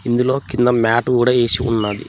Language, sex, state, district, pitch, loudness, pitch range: Telugu, male, Telangana, Mahabubabad, 120 Hz, -16 LUFS, 115-125 Hz